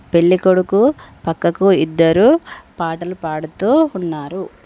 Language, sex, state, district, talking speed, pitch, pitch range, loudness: Telugu, female, Telangana, Komaram Bheem, 75 wpm, 180 Hz, 165-195 Hz, -16 LUFS